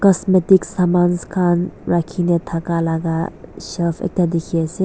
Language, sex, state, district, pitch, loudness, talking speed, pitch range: Nagamese, female, Nagaland, Dimapur, 175 Hz, -18 LUFS, 125 wpm, 165-185 Hz